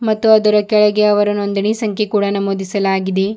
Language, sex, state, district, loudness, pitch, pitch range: Kannada, female, Karnataka, Bidar, -15 LUFS, 205 Hz, 200-215 Hz